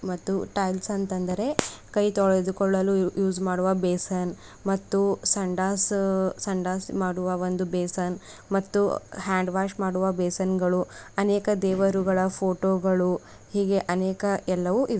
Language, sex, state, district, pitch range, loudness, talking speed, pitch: Kannada, female, Karnataka, Bidar, 185-195 Hz, -26 LUFS, 115 wpm, 190 Hz